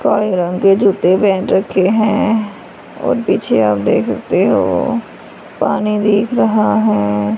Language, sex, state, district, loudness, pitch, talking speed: Hindi, female, Haryana, Charkhi Dadri, -14 LUFS, 190 Hz, 130 wpm